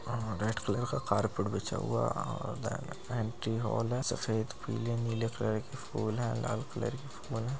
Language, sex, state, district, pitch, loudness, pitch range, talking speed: Hindi, male, Bihar, Begusarai, 115 Hz, -35 LUFS, 110-120 Hz, 190 wpm